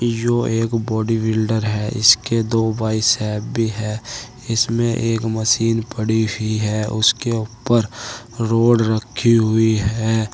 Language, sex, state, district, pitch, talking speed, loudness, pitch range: Hindi, male, Uttar Pradesh, Saharanpur, 110 Hz, 120 wpm, -18 LUFS, 110-115 Hz